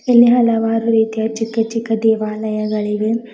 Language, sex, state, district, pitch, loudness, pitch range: Kannada, female, Karnataka, Bidar, 225 Hz, -16 LUFS, 220-230 Hz